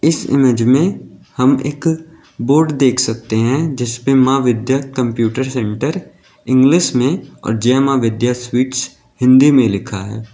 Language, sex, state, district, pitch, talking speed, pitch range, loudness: Hindi, male, Uttar Pradesh, Lalitpur, 130 Hz, 150 wpm, 120-135 Hz, -15 LUFS